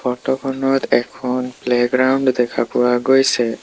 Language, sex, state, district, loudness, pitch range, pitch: Assamese, male, Assam, Sonitpur, -17 LUFS, 125-135 Hz, 125 Hz